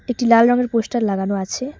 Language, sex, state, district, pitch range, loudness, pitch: Bengali, female, West Bengal, Cooch Behar, 205-245 Hz, -17 LUFS, 235 Hz